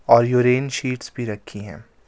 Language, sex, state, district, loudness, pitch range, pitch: Hindi, male, Himachal Pradesh, Shimla, -20 LUFS, 105-125 Hz, 120 Hz